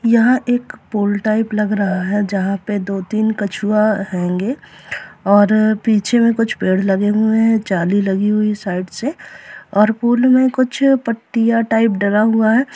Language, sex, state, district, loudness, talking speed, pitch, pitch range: Hindi, female, Bihar, Purnia, -16 LUFS, 170 wpm, 215 Hz, 200-230 Hz